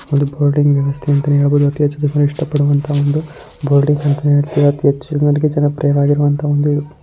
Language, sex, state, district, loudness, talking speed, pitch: Kannada, female, Karnataka, Mysore, -15 LUFS, 145 wpm, 145 Hz